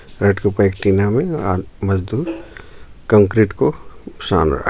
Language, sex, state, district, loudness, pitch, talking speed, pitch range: Hindi, male, Jharkhand, Ranchi, -17 LUFS, 100 Hz, 100 wpm, 95-105 Hz